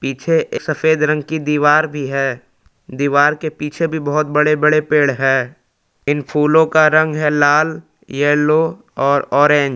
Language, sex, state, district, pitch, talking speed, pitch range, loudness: Hindi, male, Jharkhand, Palamu, 150 Hz, 165 wpm, 140-155 Hz, -15 LUFS